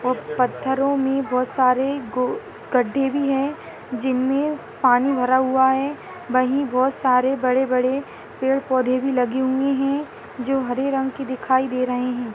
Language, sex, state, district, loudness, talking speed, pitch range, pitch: Hindi, female, Chhattisgarh, Sarguja, -21 LUFS, 170 wpm, 255-275 Hz, 260 Hz